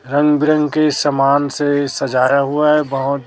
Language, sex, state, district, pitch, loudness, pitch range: Hindi, male, Chhattisgarh, Raipur, 145 Hz, -15 LUFS, 135-150 Hz